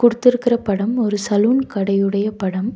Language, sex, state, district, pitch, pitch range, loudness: Tamil, female, Tamil Nadu, Nilgiris, 210 Hz, 200-240 Hz, -18 LUFS